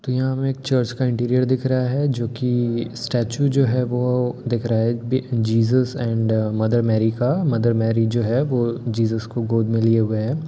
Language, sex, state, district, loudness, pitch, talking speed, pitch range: Hindi, male, Bihar, Muzaffarpur, -20 LUFS, 120 Hz, 215 wpm, 115-130 Hz